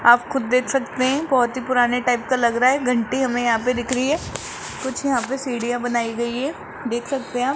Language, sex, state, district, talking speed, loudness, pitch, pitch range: Hindi, male, Rajasthan, Jaipur, 245 wpm, -21 LUFS, 250 Hz, 240-265 Hz